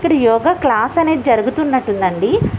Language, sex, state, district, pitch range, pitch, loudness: Telugu, female, Andhra Pradesh, Visakhapatnam, 210-315 Hz, 255 Hz, -15 LUFS